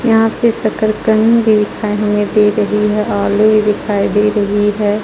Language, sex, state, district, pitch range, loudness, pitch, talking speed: Hindi, female, Jharkhand, Ranchi, 205-215 Hz, -13 LUFS, 210 Hz, 140 wpm